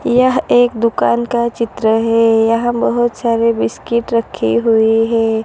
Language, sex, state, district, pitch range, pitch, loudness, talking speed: Hindi, female, Gujarat, Valsad, 225-235 Hz, 230 Hz, -14 LUFS, 145 wpm